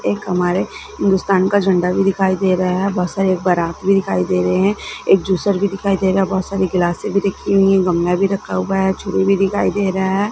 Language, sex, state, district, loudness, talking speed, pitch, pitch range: Hindi, female, Bihar, Gaya, -17 LUFS, 250 wpm, 190 Hz, 180-195 Hz